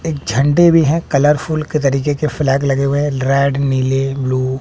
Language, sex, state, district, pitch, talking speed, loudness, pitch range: Hindi, male, Bihar, West Champaran, 140 Hz, 210 wpm, -15 LUFS, 135-150 Hz